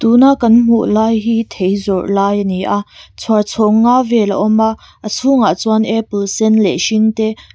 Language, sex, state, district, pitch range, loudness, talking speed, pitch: Mizo, female, Mizoram, Aizawl, 205-230 Hz, -13 LUFS, 205 wpm, 220 Hz